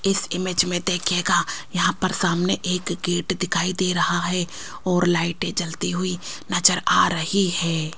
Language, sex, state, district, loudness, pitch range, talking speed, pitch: Hindi, female, Rajasthan, Jaipur, -22 LUFS, 175-185 Hz, 135 wpm, 180 Hz